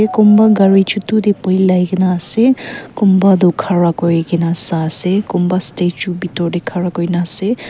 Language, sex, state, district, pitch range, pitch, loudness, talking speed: Nagamese, female, Nagaland, Kohima, 175-205 Hz, 185 Hz, -13 LUFS, 170 wpm